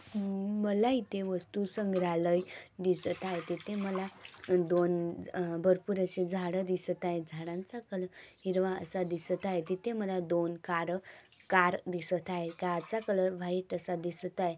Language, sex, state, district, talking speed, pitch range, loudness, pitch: Marathi, female, Maharashtra, Dhule, 140 wpm, 175-190 Hz, -34 LUFS, 180 Hz